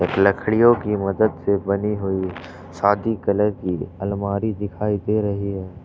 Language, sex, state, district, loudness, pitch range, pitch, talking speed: Hindi, male, Jharkhand, Ranchi, -21 LUFS, 95-105 Hz, 100 Hz, 145 wpm